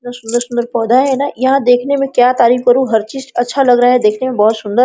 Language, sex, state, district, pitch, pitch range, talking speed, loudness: Hindi, female, Bihar, Araria, 245 Hz, 240-260 Hz, 270 wpm, -13 LUFS